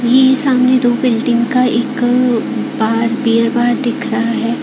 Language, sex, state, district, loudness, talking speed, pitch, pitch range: Hindi, female, Odisha, Khordha, -14 LUFS, 155 wpm, 245 Hz, 235-255 Hz